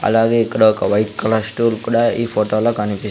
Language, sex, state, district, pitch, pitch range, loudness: Telugu, male, Andhra Pradesh, Sri Satya Sai, 110 Hz, 105-115 Hz, -16 LUFS